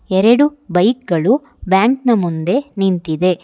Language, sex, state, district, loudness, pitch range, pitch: Kannada, female, Karnataka, Bangalore, -15 LUFS, 180-250 Hz, 195 Hz